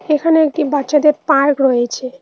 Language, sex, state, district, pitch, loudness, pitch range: Bengali, female, West Bengal, Cooch Behar, 290 Hz, -14 LUFS, 265-300 Hz